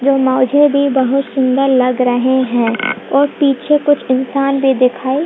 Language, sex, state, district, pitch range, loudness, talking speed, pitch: Hindi, female, Bihar, Purnia, 255-280 Hz, -13 LUFS, 170 wpm, 265 Hz